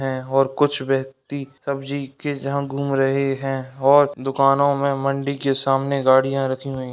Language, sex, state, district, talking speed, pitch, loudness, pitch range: Hindi, male, Uttar Pradesh, Ghazipur, 175 wpm, 135 Hz, -20 LUFS, 135-140 Hz